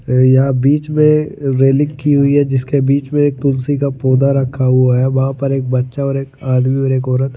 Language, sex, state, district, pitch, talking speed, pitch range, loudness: Hindi, male, Bihar, Kaimur, 135 Hz, 235 wpm, 130-140 Hz, -14 LUFS